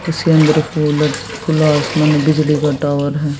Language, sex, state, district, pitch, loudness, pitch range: Hindi, female, Haryana, Jhajjar, 150 Hz, -14 LUFS, 150-155 Hz